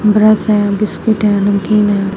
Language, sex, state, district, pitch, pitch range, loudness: Hindi, female, Uttar Pradesh, Shamli, 210 Hz, 200-215 Hz, -12 LUFS